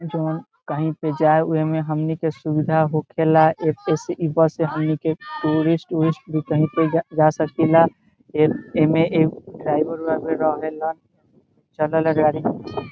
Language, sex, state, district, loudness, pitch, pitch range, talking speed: Bhojpuri, male, Bihar, Saran, -20 LUFS, 160 Hz, 155-160 Hz, 115 wpm